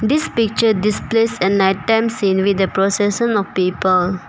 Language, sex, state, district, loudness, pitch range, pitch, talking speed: English, female, Arunachal Pradesh, Papum Pare, -17 LUFS, 190-225 Hz, 205 Hz, 170 wpm